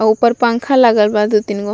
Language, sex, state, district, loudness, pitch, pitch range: Bhojpuri, female, Bihar, Gopalganj, -13 LUFS, 220 Hz, 210-235 Hz